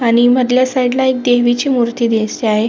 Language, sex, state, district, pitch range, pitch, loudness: Marathi, female, Maharashtra, Sindhudurg, 235-255 Hz, 245 Hz, -14 LUFS